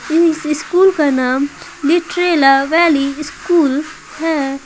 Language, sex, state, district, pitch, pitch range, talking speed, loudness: Hindi, female, Bihar, Patna, 305 Hz, 280-335 Hz, 105 wpm, -14 LUFS